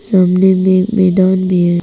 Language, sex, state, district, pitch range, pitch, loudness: Hindi, female, Arunachal Pradesh, Papum Pare, 180-190 Hz, 185 Hz, -11 LUFS